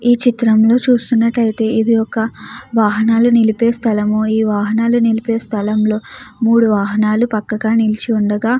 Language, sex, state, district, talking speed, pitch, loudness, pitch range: Telugu, female, Andhra Pradesh, Chittoor, 120 wpm, 225 Hz, -14 LUFS, 215-235 Hz